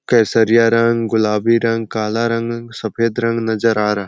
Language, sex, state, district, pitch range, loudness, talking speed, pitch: Hindi, male, Chhattisgarh, Sarguja, 110-115 Hz, -16 LUFS, 175 wpm, 115 Hz